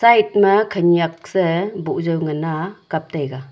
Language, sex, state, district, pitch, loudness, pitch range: Wancho, female, Arunachal Pradesh, Longding, 170 Hz, -18 LUFS, 160-200 Hz